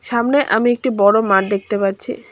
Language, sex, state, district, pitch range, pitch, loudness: Bengali, female, West Bengal, Cooch Behar, 200-240 Hz, 220 Hz, -16 LUFS